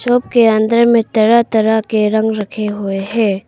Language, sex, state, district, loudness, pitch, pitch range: Hindi, female, Arunachal Pradesh, Papum Pare, -13 LUFS, 220 Hz, 210-230 Hz